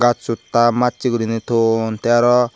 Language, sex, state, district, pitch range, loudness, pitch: Chakma, male, Tripura, Dhalai, 115-120 Hz, -17 LUFS, 120 Hz